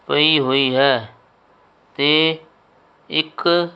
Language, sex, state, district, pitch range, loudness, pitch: Punjabi, male, Punjab, Kapurthala, 130-160 Hz, -17 LUFS, 145 Hz